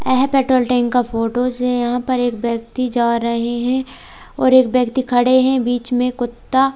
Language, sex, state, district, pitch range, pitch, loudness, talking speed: Hindi, female, Bihar, Katihar, 240-255 Hz, 250 Hz, -17 LUFS, 185 wpm